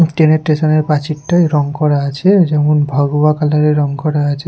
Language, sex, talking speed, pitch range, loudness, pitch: Bengali, male, 200 wpm, 145-155 Hz, -13 LUFS, 150 Hz